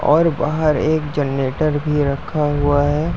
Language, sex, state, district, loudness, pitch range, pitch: Hindi, male, Uttar Pradesh, Etah, -18 LUFS, 145-155 Hz, 150 Hz